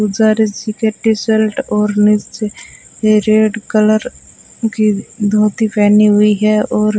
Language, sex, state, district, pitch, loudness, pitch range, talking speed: Hindi, female, Rajasthan, Bikaner, 215 Hz, -13 LUFS, 210-220 Hz, 95 wpm